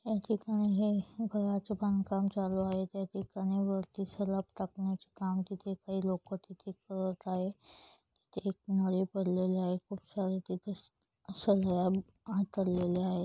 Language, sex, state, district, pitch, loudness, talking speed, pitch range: Marathi, female, Maharashtra, Chandrapur, 195 Hz, -35 LUFS, 130 wpm, 185-200 Hz